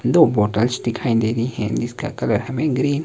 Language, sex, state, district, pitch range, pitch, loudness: Hindi, male, Himachal Pradesh, Shimla, 110-135 Hz, 120 Hz, -20 LUFS